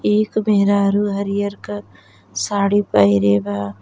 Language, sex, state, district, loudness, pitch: Bhojpuri, female, Uttar Pradesh, Deoria, -17 LUFS, 200 Hz